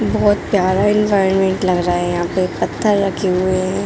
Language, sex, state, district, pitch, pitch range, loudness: Hindi, female, Jharkhand, Jamtara, 190 Hz, 185-200 Hz, -16 LUFS